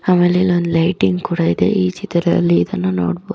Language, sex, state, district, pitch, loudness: Kannada, female, Karnataka, Dharwad, 165 Hz, -16 LUFS